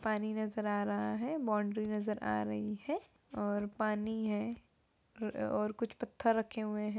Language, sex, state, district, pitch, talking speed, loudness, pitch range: Hindi, female, Uttar Pradesh, Budaun, 215 Hz, 180 wpm, -37 LUFS, 210-220 Hz